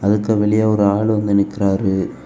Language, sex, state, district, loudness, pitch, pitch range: Tamil, male, Tamil Nadu, Kanyakumari, -17 LUFS, 100 Hz, 100-105 Hz